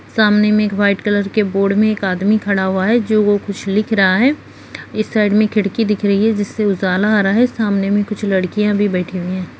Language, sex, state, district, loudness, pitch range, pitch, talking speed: Hindi, female, Bihar, Madhepura, -15 LUFS, 195-215 Hz, 205 Hz, 245 wpm